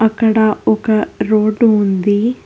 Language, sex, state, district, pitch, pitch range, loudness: Telugu, female, Telangana, Hyderabad, 215 Hz, 215-220 Hz, -14 LUFS